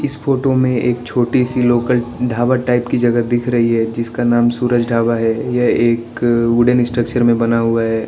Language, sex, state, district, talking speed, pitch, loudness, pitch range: Hindi, male, Arunachal Pradesh, Lower Dibang Valley, 195 wpm, 120 Hz, -15 LUFS, 115-125 Hz